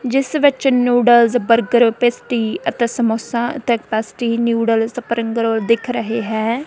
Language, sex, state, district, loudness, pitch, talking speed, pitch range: Punjabi, female, Punjab, Kapurthala, -16 LUFS, 235 Hz, 125 wpm, 230-245 Hz